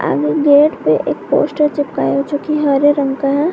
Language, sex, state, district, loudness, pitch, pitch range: Hindi, female, Jharkhand, Garhwa, -14 LUFS, 290 Hz, 275-300 Hz